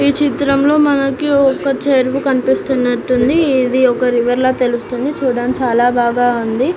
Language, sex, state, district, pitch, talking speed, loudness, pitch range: Telugu, female, Andhra Pradesh, Anantapur, 255 Hz, 150 wpm, -14 LUFS, 245-275 Hz